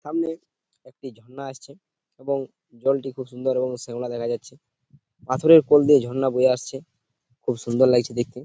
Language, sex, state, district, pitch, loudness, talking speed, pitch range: Bengali, male, West Bengal, Purulia, 130 Hz, -22 LUFS, 155 wpm, 120-140 Hz